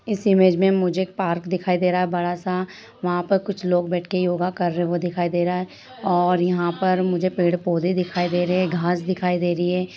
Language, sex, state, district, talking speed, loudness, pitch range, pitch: Hindi, female, Bihar, Jahanabad, 240 wpm, -22 LUFS, 175-185 Hz, 180 Hz